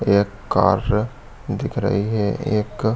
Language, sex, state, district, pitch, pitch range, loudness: Hindi, male, Chhattisgarh, Bilaspur, 105 Hz, 100-110 Hz, -21 LUFS